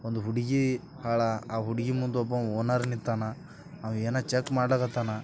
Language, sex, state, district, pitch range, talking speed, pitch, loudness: Kannada, male, Karnataka, Bijapur, 115-125 Hz, 115 wpm, 120 Hz, -29 LUFS